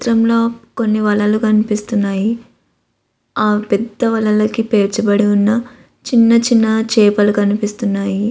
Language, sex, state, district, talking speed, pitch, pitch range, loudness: Telugu, female, Andhra Pradesh, Visakhapatnam, 95 wpm, 215 Hz, 210-230 Hz, -15 LUFS